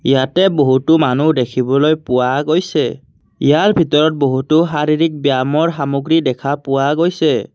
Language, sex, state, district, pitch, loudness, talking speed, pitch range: Assamese, male, Assam, Kamrup Metropolitan, 145 Hz, -15 LUFS, 120 wpm, 135-160 Hz